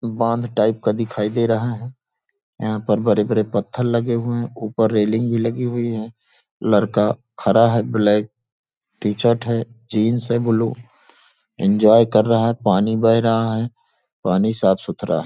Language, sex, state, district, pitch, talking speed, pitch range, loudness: Hindi, male, Bihar, Sitamarhi, 115 Hz, 155 wpm, 110-120 Hz, -19 LUFS